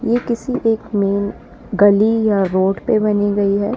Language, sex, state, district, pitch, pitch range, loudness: Hindi, female, Uttar Pradesh, Lalitpur, 205 Hz, 200-225 Hz, -16 LUFS